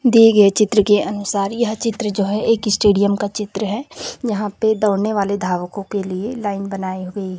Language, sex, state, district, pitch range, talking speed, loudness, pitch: Hindi, female, Chhattisgarh, Raipur, 200-215 Hz, 195 wpm, -18 LUFS, 205 Hz